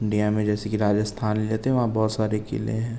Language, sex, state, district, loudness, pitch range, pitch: Hindi, male, Uttar Pradesh, Jalaun, -24 LUFS, 105-110 Hz, 110 Hz